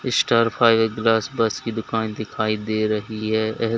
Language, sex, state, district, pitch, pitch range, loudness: Hindi, male, Uttar Pradesh, Lalitpur, 110 Hz, 110-115 Hz, -21 LUFS